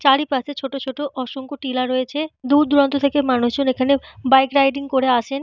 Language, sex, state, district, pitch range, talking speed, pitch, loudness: Bengali, female, Jharkhand, Jamtara, 260-280 Hz, 165 wpm, 270 Hz, -19 LUFS